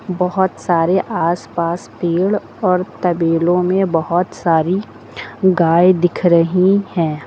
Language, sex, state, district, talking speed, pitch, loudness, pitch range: Hindi, female, Uttar Pradesh, Lucknow, 105 wpm, 175 Hz, -16 LUFS, 165-185 Hz